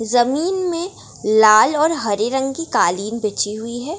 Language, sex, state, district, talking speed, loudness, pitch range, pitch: Hindi, female, Bihar, Darbhanga, 165 wpm, -18 LUFS, 215-315 Hz, 240 Hz